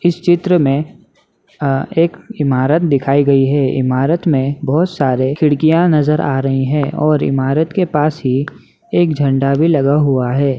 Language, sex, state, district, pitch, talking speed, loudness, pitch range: Hindi, male, Bihar, Muzaffarpur, 145 Hz, 165 wpm, -14 LUFS, 135-160 Hz